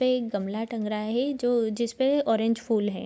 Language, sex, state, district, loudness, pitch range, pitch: Hindi, female, Bihar, Gopalganj, -26 LUFS, 215-250 Hz, 230 Hz